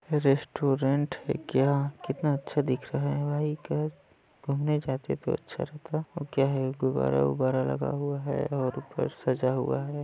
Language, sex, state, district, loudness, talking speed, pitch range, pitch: Hindi, male, Chhattisgarh, Balrampur, -29 LUFS, 160 wpm, 130-145 Hz, 140 Hz